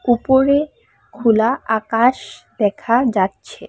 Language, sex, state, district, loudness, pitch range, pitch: Bengali, female, Assam, Hailakandi, -17 LUFS, 220-260 Hz, 235 Hz